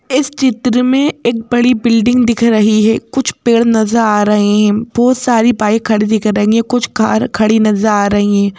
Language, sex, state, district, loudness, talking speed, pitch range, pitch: Hindi, female, Madhya Pradesh, Bhopal, -12 LUFS, 205 wpm, 215-245 Hz, 225 Hz